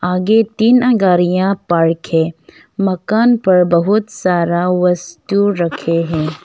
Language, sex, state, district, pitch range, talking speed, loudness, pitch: Hindi, female, Arunachal Pradesh, Longding, 170-205 Hz, 110 wpm, -14 LUFS, 180 Hz